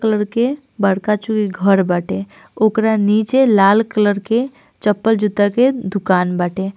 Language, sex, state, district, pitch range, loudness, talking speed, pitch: Hindi, female, Bihar, East Champaran, 195-225 Hz, -16 LUFS, 140 wpm, 210 Hz